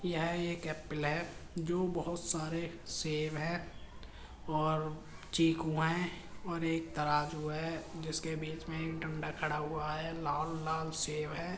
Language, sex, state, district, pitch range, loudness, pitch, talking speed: Hindi, male, Uttar Pradesh, Jalaun, 155-165 Hz, -36 LUFS, 160 Hz, 140 wpm